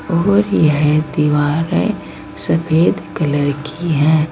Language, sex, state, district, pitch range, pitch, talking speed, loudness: Hindi, female, Uttar Pradesh, Saharanpur, 150-165 Hz, 155 Hz, 110 wpm, -16 LUFS